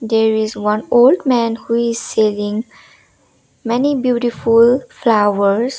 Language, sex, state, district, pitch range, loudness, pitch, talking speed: English, female, Sikkim, Gangtok, 215-240 Hz, -15 LUFS, 230 Hz, 115 wpm